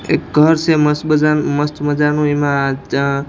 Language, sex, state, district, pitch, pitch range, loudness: Gujarati, male, Gujarat, Gandhinagar, 150 Hz, 145-150 Hz, -15 LUFS